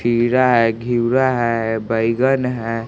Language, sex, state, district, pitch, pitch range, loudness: Hindi, male, Bihar, West Champaran, 120 Hz, 115-125 Hz, -17 LUFS